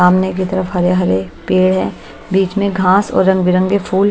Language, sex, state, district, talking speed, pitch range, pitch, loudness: Hindi, female, Odisha, Malkangiri, 205 wpm, 180-190 Hz, 185 Hz, -14 LUFS